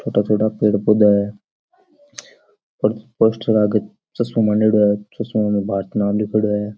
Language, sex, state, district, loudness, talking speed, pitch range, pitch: Rajasthani, male, Rajasthan, Nagaur, -18 LUFS, 60 wpm, 105-110 Hz, 105 Hz